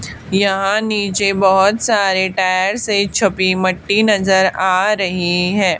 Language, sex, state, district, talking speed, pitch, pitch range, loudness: Hindi, female, Haryana, Charkhi Dadri, 125 wpm, 195 Hz, 185-200 Hz, -15 LUFS